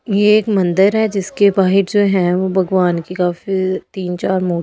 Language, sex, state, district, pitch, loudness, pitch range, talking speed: Hindi, female, Delhi, New Delhi, 190 Hz, -15 LUFS, 180-200 Hz, 180 wpm